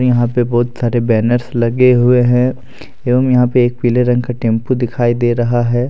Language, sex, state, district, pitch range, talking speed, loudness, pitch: Hindi, male, Jharkhand, Deoghar, 120-125 Hz, 205 wpm, -14 LUFS, 120 Hz